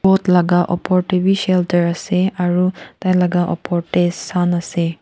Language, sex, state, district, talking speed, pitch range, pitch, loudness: Nagamese, female, Nagaland, Kohima, 155 wpm, 175-185 Hz, 180 Hz, -17 LUFS